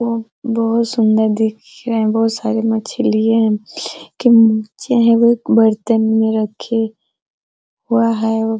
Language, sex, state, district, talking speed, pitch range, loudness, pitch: Hindi, female, Bihar, Araria, 155 wpm, 220-230 Hz, -15 LUFS, 225 Hz